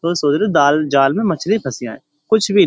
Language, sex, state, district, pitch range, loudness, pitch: Hindi, male, Uttar Pradesh, Jyotiba Phule Nagar, 145-200 Hz, -16 LUFS, 155 Hz